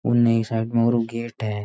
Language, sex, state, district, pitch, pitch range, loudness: Rajasthani, male, Rajasthan, Nagaur, 115 Hz, 115-120 Hz, -22 LUFS